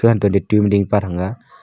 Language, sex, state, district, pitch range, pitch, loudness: Wancho, male, Arunachal Pradesh, Longding, 100-110 Hz, 100 Hz, -17 LUFS